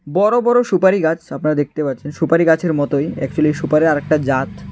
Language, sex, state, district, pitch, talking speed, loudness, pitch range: Bengali, male, Tripura, West Tripura, 155 Hz, 180 wpm, -16 LUFS, 145-170 Hz